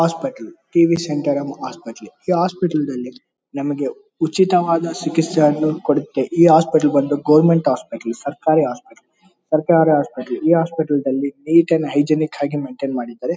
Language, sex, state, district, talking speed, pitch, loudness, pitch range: Kannada, male, Karnataka, Bellary, 140 wpm, 155 Hz, -18 LUFS, 140-165 Hz